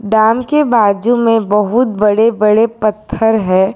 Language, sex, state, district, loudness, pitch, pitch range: Hindi, female, Gujarat, Valsad, -12 LUFS, 220 Hz, 210-230 Hz